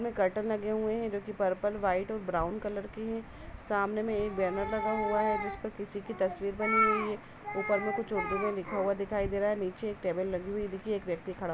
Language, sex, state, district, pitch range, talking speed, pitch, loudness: Hindi, female, Uttar Pradesh, Jalaun, 195-215 Hz, 260 wpm, 205 Hz, -32 LUFS